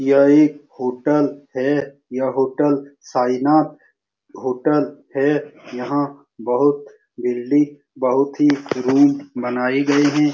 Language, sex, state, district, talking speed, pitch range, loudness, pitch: Hindi, male, Bihar, Saran, 110 wpm, 130-145 Hz, -19 LUFS, 140 Hz